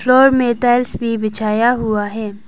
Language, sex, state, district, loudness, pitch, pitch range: Hindi, female, Arunachal Pradesh, Papum Pare, -15 LUFS, 230 Hz, 215-245 Hz